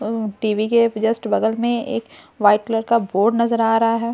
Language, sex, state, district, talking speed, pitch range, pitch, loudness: Hindi, female, Bihar, Katihar, 215 wpm, 215-235 Hz, 225 Hz, -19 LUFS